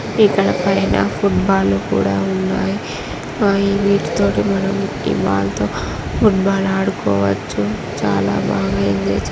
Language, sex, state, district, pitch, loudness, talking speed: Telugu, female, Andhra Pradesh, Chittoor, 100 Hz, -17 LUFS, 115 wpm